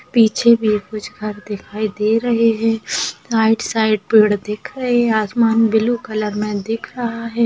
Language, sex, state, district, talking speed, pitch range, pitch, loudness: Hindi, female, Maharashtra, Aurangabad, 170 wpm, 210-230 Hz, 220 Hz, -17 LUFS